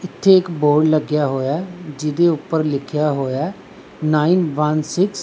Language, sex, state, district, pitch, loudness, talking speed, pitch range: Punjabi, male, Punjab, Pathankot, 155 Hz, -18 LUFS, 170 wpm, 150-175 Hz